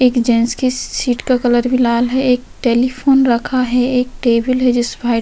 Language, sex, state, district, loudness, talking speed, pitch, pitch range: Hindi, female, Uttar Pradesh, Hamirpur, -15 LUFS, 230 wpm, 250 Hz, 240-255 Hz